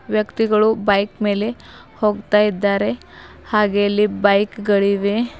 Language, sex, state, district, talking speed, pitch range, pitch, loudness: Kannada, female, Karnataka, Bidar, 100 wpm, 200-215 Hz, 210 Hz, -18 LUFS